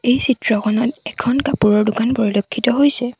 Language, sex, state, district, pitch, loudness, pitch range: Assamese, female, Assam, Sonitpur, 245 Hz, -16 LUFS, 215-255 Hz